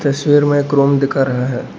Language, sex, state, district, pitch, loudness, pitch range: Hindi, male, Arunachal Pradesh, Lower Dibang Valley, 140 Hz, -14 LUFS, 135-145 Hz